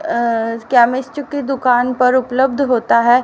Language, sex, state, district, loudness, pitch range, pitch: Hindi, female, Haryana, Rohtak, -15 LUFS, 240-270 Hz, 255 Hz